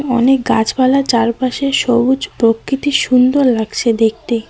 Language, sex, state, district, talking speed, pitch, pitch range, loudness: Bengali, female, West Bengal, Cooch Behar, 105 wpm, 255 Hz, 230-270 Hz, -14 LUFS